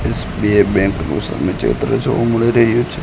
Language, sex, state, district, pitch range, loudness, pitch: Gujarati, male, Gujarat, Gandhinagar, 100-120 Hz, -16 LUFS, 115 Hz